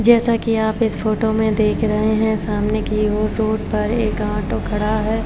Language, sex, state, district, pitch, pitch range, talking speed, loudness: Hindi, female, Maharashtra, Chandrapur, 215 Hz, 210-220 Hz, 205 wpm, -19 LUFS